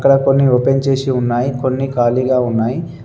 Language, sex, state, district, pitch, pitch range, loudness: Telugu, male, Telangana, Adilabad, 130 Hz, 125-135 Hz, -15 LUFS